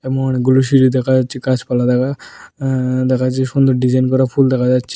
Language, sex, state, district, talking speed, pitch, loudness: Bengali, male, Tripura, West Tripura, 205 wpm, 130 Hz, -15 LUFS